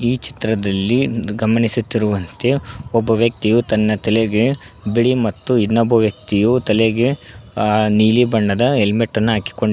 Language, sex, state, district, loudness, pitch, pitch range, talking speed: Kannada, male, Karnataka, Koppal, -17 LUFS, 110 Hz, 105-120 Hz, 110 wpm